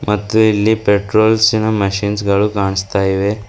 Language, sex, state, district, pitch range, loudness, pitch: Kannada, female, Karnataka, Bidar, 100-110 Hz, -14 LUFS, 105 Hz